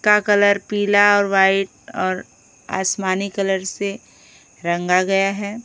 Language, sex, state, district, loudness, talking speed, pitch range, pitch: Hindi, female, Odisha, Khordha, -18 LUFS, 125 wpm, 185-205 Hz, 195 Hz